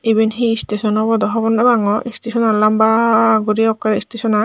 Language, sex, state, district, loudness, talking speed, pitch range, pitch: Chakma, male, Tripura, Unakoti, -15 LUFS, 160 wpm, 215-230 Hz, 220 Hz